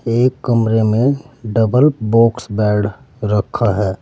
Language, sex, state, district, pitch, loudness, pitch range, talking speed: Hindi, male, Uttar Pradesh, Saharanpur, 115 Hz, -16 LUFS, 105-125 Hz, 120 wpm